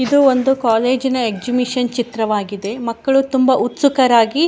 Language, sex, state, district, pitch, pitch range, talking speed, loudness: Kannada, female, Karnataka, Shimoga, 250 Hz, 230-265 Hz, 135 wpm, -16 LUFS